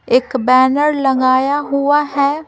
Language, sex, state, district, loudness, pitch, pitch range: Hindi, female, Bihar, Patna, -14 LUFS, 280 Hz, 260-290 Hz